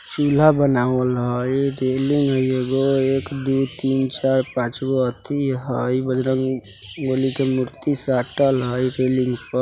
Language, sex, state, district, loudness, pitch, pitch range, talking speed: Bajjika, male, Bihar, Vaishali, -20 LUFS, 130 Hz, 125-135 Hz, 145 wpm